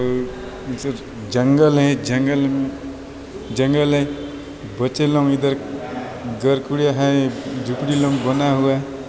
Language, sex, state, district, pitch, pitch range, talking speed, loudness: Halbi, male, Chhattisgarh, Bastar, 135 Hz, 130-140 Hz, 105 wpm, -19 LUFS